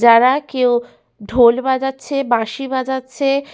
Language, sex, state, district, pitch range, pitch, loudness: Bengali, female, West Bengal, Paschim Medinipur, 240-270 Hz, 260 Hz, -16 LUFS